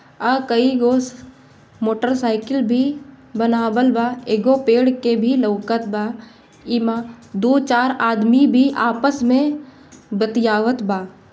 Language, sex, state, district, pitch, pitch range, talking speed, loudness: Bhojpuri, female, Bihar, Gopalganj, 240 Hz, 225-255 Hz, 115 wpm, -18 LUFS